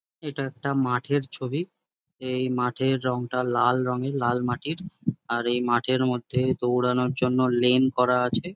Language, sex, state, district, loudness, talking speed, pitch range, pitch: Bengali, male, West Bengal, Jhargram, -25 LUFS, 140 wpm, 125-135 Hz, 125 Hz